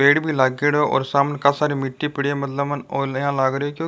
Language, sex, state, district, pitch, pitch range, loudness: Rajasthani, male, Rajasthan, Nagaur, 140 Hz, 140-145 Hz, -20 LUFS